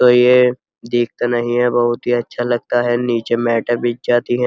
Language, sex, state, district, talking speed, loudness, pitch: Hindi, male, Uttar Pradesh, Muzaffarnagar, 200 wpm, -16 LUFS, 120 Hz